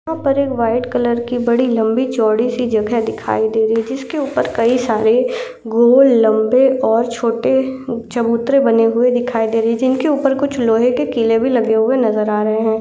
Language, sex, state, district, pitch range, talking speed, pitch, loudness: Hindi, female, Uttar Pradesh, Etah, 225-255 Hz, 195 wpm, 235 Hz, -15 LUFS